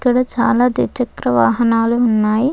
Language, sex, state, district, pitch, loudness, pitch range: Telugu, female, Telangana, Komaram Bheem, 235 Hz, -15 LUFS, 220-250 Hz